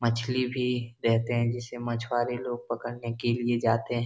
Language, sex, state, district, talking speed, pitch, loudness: Hindi, male, Bihar, Jahanabad, 180 wpm, 120 Hz, -29 LUFS